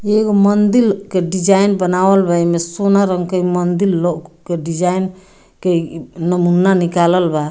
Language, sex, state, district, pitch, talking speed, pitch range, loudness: Bhojpuri, female, Bihar, Muzaffarpur, 180 Hz, 160 wpm, 175-195 Hz, -15 LUFS